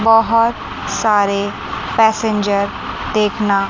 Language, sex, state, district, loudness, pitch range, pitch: Hindi, female, Chandigarh, Chandigarh, -16 LUFS, 200-225 Hz, 215 Hz